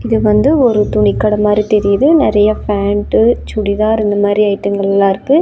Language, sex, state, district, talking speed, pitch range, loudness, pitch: Tamil, female, Tamil Nadu, Namakkal, 155 wpm, 200-220 Hz, -12 LUFS, 210 Hz